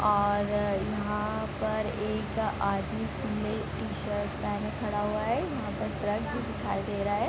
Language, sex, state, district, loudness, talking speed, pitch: Hindi, female, Bihar, East Champaran, -31 LUFS, 150 wpm, 195 Hz